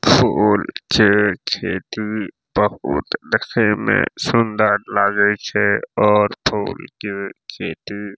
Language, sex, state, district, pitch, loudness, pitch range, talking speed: Maithili, male, Bihar, Saharsa, 105 Hz, -18 LUFS, 100-105 Hz, 110 wpm